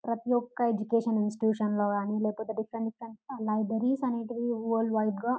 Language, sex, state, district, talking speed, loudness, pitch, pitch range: Telugu, female, Telangana, Karimnagar, 135 wpm, -30 LUFS, 225 Hz, 215-235 Hz